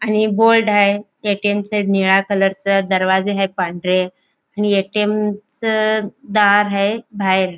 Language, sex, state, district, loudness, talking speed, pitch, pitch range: Marathi, female, Goa, North and South Goa, -17 LUFS, 135 wpm, 205 Hz, 195-210 Hz